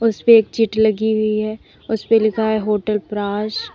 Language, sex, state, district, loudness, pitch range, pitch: Hindi, female, Uttar Pradesh, Lalitpur, -17 LUFS, 210-220 Hz, 220 Hz